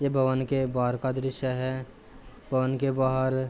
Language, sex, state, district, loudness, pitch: Hindi, male, Uttar Pradesh, Jalaun, -27 LUFS, 130 Hz